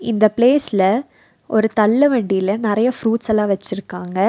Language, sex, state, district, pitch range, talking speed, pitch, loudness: Tamil, female, Tamil Nadu, Nilgiris, 200-235 Hz, 125 wpm, 215 Hz, -17 LUFS